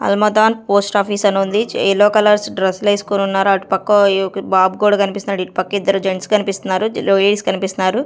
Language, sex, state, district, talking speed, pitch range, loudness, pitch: Telugu, female, Andhra Pradesh, Sri Satya Sai, 155 wpm, 195-205 Hz, -15 LUFS, 200 Hz